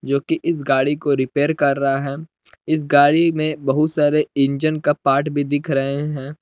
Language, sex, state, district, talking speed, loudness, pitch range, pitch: Hindi, male, Jharkhand, Palamu, 185 wpm, -19 LUFS, 140-155 Hz, 145 Hz